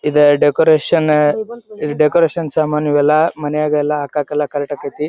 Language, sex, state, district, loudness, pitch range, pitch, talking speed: Kannada, male, Karnataka, Dharwad, -15 LUFS, 150-160 Hz, 150 Hz, 155 wpm